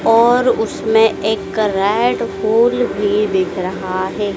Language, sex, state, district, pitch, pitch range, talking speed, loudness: Hindi, female, Madhya Pradesh, Dhar, 220 Hz, 200-305 Hz, 110 wpm, -16 LUFS